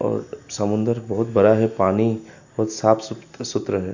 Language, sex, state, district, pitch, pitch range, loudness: Hindi, male, Uttar Pradesh, Hamirpur, 110 Hz, 105-115 Hz, -21 LUFS